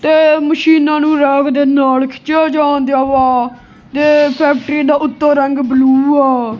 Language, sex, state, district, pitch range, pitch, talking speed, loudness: Punjabi, female, Punjab, Kapurthala, 265-300 Hz, 285 Hz, 145 wpm, -12 LUFS